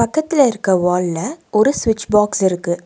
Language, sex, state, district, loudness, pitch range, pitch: Tamil, female, Tamil Nadu, Nilgiris, -16 LUFS, 180-235 Hz, 210 Hz